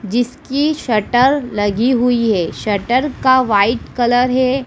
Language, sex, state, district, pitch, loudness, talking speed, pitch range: Hindi, female, Madhya Pradesh, Dhar, 245 Hz, -15 LUFS, 130 wpm, 220-260 Hz